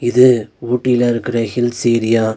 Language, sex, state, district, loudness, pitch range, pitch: Tamil, male, Tamil Nadu, Nilgiris, -15 LUFS, 115-125 Hz, 120 Hz